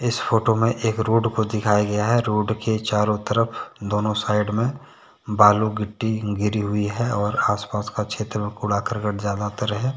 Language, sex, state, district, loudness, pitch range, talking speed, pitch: Hindi, male, Jharkhand, Deoghar, -22 LUFS, 105-110 Hz, 180 wpm, 105 Hz